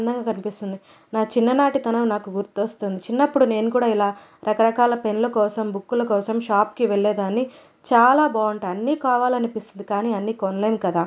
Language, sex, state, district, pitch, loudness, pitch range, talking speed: Telugu, female, Andhra Pradesh, Anantapur, 220 Hz, -21 LUFS, 205-240 Hz, 170 wpm